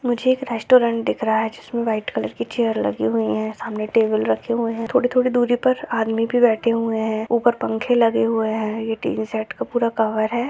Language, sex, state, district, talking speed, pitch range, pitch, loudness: Hindi, female, Bihar, Darbhanga, 225 wpm, 220-240 Hz, 225 Hz, -20 LUFS